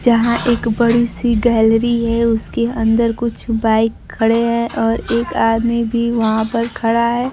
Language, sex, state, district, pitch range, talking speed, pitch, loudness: Hindi, female, Bihar, Kaimur, 225-235 Hz, 165 wpm, 235 Hz, -16 LUFS